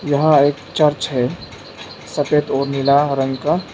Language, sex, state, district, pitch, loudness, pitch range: Hindi, male, Arunachal Pradesh, Lower Dibang Valley, 145 Hz, -17 LUFS, 135-150 Hz